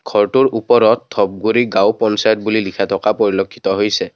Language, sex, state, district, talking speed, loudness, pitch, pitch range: Assamese, male, Assam, Kamrup Metropolitan, 145 wpm, -15 LUFS, 110 Hz, 100-115 Hz